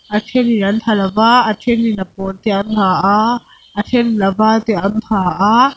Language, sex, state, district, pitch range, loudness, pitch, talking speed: Mizo, female, Mizoram, Aizawl, 195-230 Hz, -14 LUFS, 215 Hz, 240 wpm